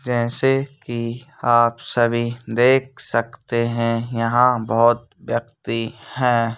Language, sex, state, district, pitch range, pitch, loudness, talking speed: Hindi, male, Madhya Pradesh, Bhopal, 115-125 Hz, 120 Hz, -18 LUFS, 100 wpm